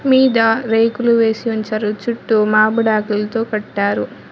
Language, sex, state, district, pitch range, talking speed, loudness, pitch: Telugu, female, Telangana, Mahabubabad, 215-230 Hz, 95 wpm, -16 LUFS, 225 Hz